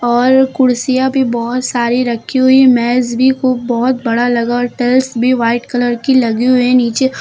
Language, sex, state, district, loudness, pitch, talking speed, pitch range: Hindi, female, Uttar Pradesh, Lucknow, -12 LUFS, 245 Hz, 190 wpm, 240-260 Hz